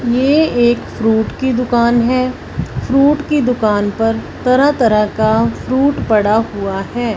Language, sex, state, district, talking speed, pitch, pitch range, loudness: Hindi, female, Punjab, Fazilka, 140 wpm, 240 Hz, 220-255 Hz, -14 LUFS